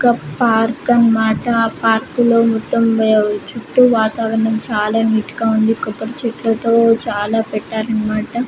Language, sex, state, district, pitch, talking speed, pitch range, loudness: Telugu, female, Andhra Pradesh, Srikakulam, 225 Hz, 125 wpm, 220-235 Hz, -15 LUFS